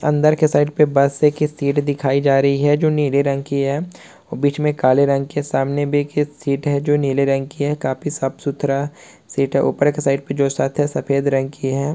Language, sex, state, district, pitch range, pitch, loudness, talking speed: Hindi, male, Uttar Pradesh, Hamirpur, 140-150 Hz, 140 Hz, -18 LUFS, 240 wpm